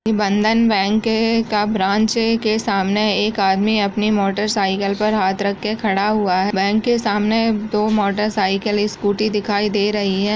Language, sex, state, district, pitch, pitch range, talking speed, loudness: Hindi, female, Uttar Pradesh, Jyotiba Phule Nagar, 210 Hz, 200-215 Hz, 190 wpm, -18 LUFS